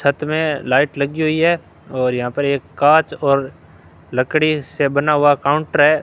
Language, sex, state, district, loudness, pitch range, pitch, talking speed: Hindi, male, Rajasthan, Bikaner, -17 LUFS, 130-155 Hz, 140 Hz, 180 wpm